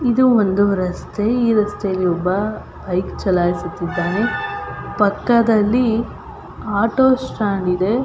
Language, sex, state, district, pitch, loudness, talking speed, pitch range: Kannada, female, Karnataka, Belgaum, 205 Hz, -18 LUFS, 95 wpm, 185-235 Hz